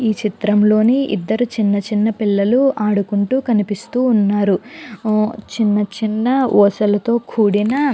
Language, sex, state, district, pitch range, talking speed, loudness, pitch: Telugu, female, Andhra Pradesh, Chittoor, 205-235 Hz, 115 wpm, -16 LUFS, 215 Hz